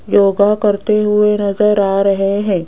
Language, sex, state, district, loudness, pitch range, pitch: Hindi, female, Rajasthan, Jaipur, -13 LUFS, 195-210 Hz, 205 Hz